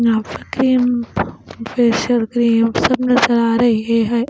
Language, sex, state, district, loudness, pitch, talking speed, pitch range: Hindi, female, Punjab, Pathankot, -16 LUFS, 235 Hz, 100 wpm, 230-245 Hz